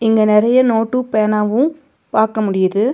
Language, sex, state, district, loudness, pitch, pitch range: Tamil, female, Tamil Nadu, Nilgiris, -15 LUFS, 220 Hz, 215-250 Hz